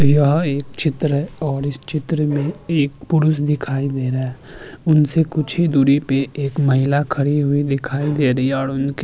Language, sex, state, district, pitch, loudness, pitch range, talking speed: Hindi, male, Uttarakhand, Tehri Garhwal, 145 Hz, -19 LUFS, 135-150 Hz, 200 wpm